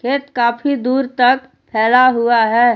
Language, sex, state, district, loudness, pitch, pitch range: Hindi, female, Jharkhand, Palamu, -15 LUFS, 245 Hz, 235-265 Hz